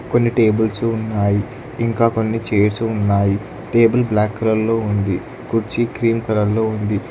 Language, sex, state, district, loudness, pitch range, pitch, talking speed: Telugu, male, Telangana, Hyderabad, -18 LUFS, 105-115 Hz, 110 Hz, 145 wpm